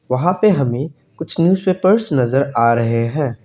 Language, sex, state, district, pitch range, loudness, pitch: Hindi, male, Assam, Kamrup Metropolitan, 125-180 Hz, -16 LUFS, 145 Hz